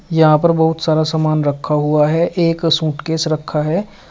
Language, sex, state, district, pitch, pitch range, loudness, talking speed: Hindi, male, Uttar Pradesh, Shamli, 160 Hz, 150-165 Hz, -16 LUFS, 175 wpm